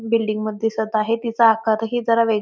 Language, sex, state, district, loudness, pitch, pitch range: Marathi, female, Maharashtra, Pune, -20 LUFS, 225 Hz, 220-230 Hz